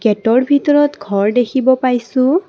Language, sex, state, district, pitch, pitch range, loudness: Assamese, female, Assam, Kamrup Metropolitan, 255 Hz, 225-285 Hz, -14 LUFS